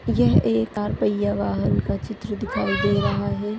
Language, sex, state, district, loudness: Hindi, female, Maharashtra, Chandrapur, -22 LUFS